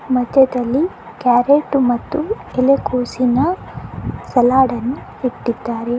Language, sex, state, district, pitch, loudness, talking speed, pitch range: Kannada, female, Karnataka, Dakshina Kannada, 255 Hz, -17 LUFS, 60 wpm, 245-275 Hz